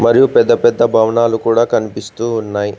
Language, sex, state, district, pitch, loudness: Telugu, male, Telangana, Mahabubabad, 115 Hz, -13 LUFS